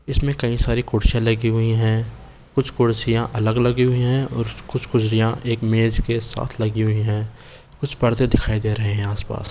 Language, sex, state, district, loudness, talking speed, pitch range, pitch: Hindi, male, Rajasthan, Jaipur, -20 LUFS, 190 wpm, 110-125 Hz, 115 Hz